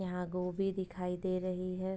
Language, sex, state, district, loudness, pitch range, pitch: Hindi, female, Uttar Pradesh, Ghazipur, -37 LUFS, 180-190 Hz, 185 Hz